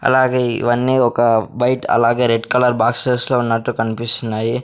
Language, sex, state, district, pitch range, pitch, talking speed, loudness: Telugu, male, Andhra Pradesh, Sri Satya Sai, 115-125 Hz, 120 Hz, 140 wpm, -16 LUFS